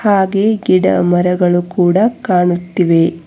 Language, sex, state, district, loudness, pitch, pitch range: Kannada, female, Karnataka, Bangalore, -13 LUFS, 180 Hz, 175-195 Hz